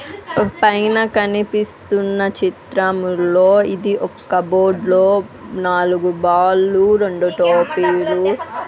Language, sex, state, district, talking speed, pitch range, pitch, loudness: Telugu, female, Andhra Pradesh, Sri Satya Sai, 70 wpm, 180-205 Hz, 190 Hz, -16 LUFS